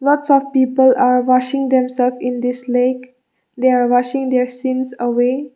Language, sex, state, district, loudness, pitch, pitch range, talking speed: English, female, Mizoram, Aizawl, -16 LUFS, 255 Hz, 250-265 Hz, 160 wpm